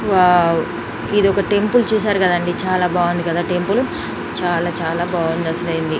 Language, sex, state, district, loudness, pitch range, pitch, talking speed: Telugu, female, Telangana, Nalgonda, -18 LUFS, 170-190 Hz, 175 Hz, 150 wpm